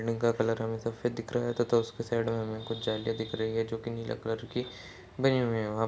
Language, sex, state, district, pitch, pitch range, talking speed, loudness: Hindi, male, Uttar Pradesh, Jalaun, 115 Hz, 110-120 Hz, 275 wpm, -32 LUFS